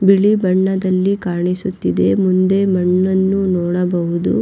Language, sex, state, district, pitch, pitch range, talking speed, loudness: Kannada, female, Karnataka, Raichur, 185 Hz, 180-195 Hz, 80 wpm, -16 LUFS